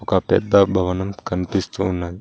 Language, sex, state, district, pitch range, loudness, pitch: Telugu, male, Telangana, Mahabubabad, 90-95 Hz, -20 LUFS, 95 Hz